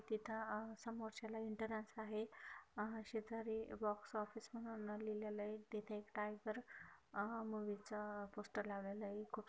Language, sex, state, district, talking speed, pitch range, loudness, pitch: Marathi, female, Maharashtra, Chandrapur, 135 wpm, 210-220 Hz, -48 LUFS, 215 Hz